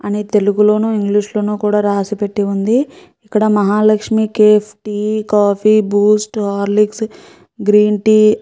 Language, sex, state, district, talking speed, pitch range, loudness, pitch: Telugu, female, Andhra Pradesh, Chittoor, 130 wpm, 205-215 Hz, -14 LUFS, 210 Hz